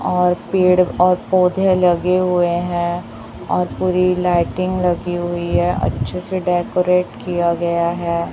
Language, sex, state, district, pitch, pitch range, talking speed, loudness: Hindi, female, Chhattisgarh, Raipur, 175 Hz, 170-180 Hz, 135 wpm, -17 LUFS